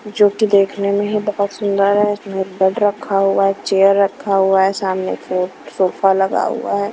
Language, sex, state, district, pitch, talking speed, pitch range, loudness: Hindi, female, Himachal Pradesh, Shimla, 200 Hz, 190 wpm, 190-205 Hz, -16 LUFS